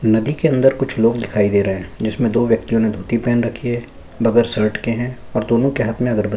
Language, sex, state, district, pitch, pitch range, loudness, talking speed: Hindi, male, Chhattisgarh, Sukma, 115 Hz, 110-120 Hz, -18 LUFS, 265 wpm